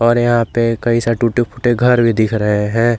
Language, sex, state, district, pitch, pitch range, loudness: Hindi, male, Jharkhand, Garhwa, 115 Hz, 115-120 Hz, -15 LUFS